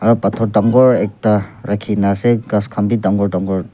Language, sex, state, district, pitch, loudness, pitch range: Nagamese, male, Nagaland, Kohima, 105 Hz, -15 LUFS, 100-115 Hz